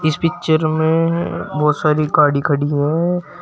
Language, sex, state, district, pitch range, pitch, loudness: Hindi, male, Uttar Pradesh, Shamli, 150-165 Hz, 155 Hz, -17 LUFS